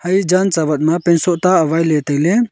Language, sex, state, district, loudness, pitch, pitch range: Wancho, male, Arunachal Pradesh, Longding, -15 LUFS, 170 Hz, 160-185 Hz